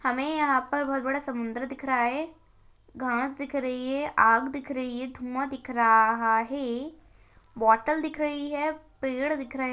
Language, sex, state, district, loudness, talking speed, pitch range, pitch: Hindi, female, Bihar, Begusarai, -27 LUFS, 180 wpm, 250-285 Hz, 265 Hz